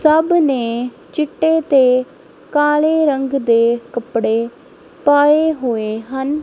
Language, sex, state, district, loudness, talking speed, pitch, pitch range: Punjabi, female, Punjab, Kapurthala, -16 LUFS, 100 wpm, 275 Hz, 240-305 Hz